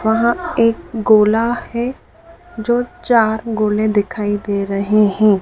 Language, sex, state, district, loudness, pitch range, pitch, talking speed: Hindi, female, Madhya Pradesh, Dhar, -16 LUFS, 210-240 Hz, 220 Hz, 120 wpm